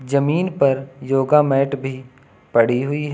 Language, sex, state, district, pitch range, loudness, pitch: Hindi, male, Uttar Pradesh, Lucknow, 130-140 Hz, -19 LUFS, 135 Hz